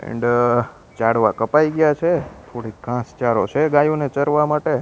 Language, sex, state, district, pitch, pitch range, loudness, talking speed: Gujarati, male, Gujarat, Gandhinagar, 135 Hz, 115-150 Hz, -18 LUFS, 150 wpm